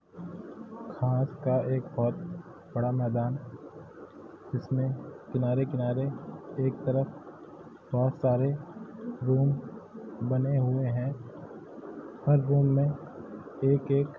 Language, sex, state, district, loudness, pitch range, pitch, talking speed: Hindi, male, Uttar Pradesh, Hamirpur, -29 LUFS, 125-140 Hz, 130 Hz, 90 wpm